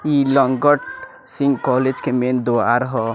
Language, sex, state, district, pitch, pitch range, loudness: Bhojpuri, male, Bihar, Muzaffarpur, 130 Hz, 125-140 Hz, -18 LUFS